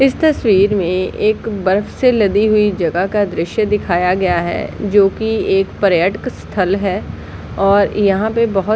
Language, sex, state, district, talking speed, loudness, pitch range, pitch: Hindi, female, Chhattisgarh, Balrampur, 165 wpm, -15 LUFS, 190-215 Hz, 200 Hz